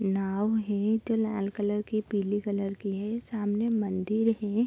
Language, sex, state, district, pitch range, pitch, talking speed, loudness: Hindi, female, Bihar, Darbhanga, 200-220 Hz, 210 Hz, 155 wpm, -29 LUFS